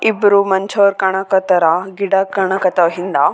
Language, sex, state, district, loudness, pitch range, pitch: Kannada, female, Karnataka, Raichur, -14 LUFS, 185-200 Hz, 190 Hz